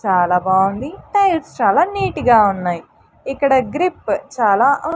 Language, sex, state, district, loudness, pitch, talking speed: Telugu, female, Andhra Pradesh, Sri Satya Sai, -16 LUFS, 265 Hz, 135 wpm